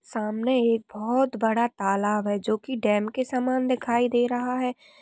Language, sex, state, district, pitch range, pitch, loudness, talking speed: Hindi, female, Uttar Pradesh, Jyotiba Phule Nagar, 215-255 Hz, 240 Hz, -25 LUFS, 190 wpm